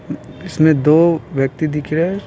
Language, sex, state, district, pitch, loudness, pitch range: Hindi, male, Bihar, Patna, 155 Hz, -15 LUFS, 150-170 Hz